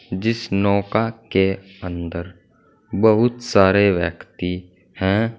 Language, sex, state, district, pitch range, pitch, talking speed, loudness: Hindi, male, Uttar Pradesh, Saharanpur, 90-110 Hz, 95 Hz, 90 wpm, -20 LUFS